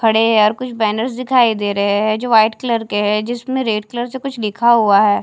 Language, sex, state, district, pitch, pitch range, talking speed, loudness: Hindi, female, Haryana, Charkhi Dadri, 225 Hz, 210-240 Hz, 255 wpm, -16 LUFS